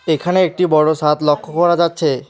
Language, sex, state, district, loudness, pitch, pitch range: Bengali, male, West Bengal, Alipurduar, -15 LUFS, 165 Hz, 155-175 Hz